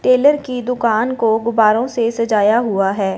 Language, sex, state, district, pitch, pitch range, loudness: Hindi, female, Punjab, Fazilka, 230 Hz, 215-250 Hz, -16 LUFS